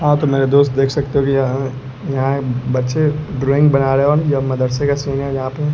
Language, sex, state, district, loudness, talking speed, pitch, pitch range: Hindi, male, Bihar, West Champaran, -16 LUFS, 230 wpm, 135 Hz, 135-145 Hz